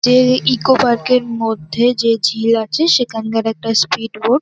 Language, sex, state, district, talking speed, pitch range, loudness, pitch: Bengali, female, West Bengal, North 24 Parganas, 175 wpm, 225-250 Hz, -15 LUFS, 230 Hz